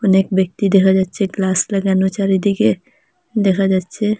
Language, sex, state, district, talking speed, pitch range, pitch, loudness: Bengali, female, Assam, Hailakandi, 130 wpm, 190-205 Hz, 195 Hz, -16 LUFS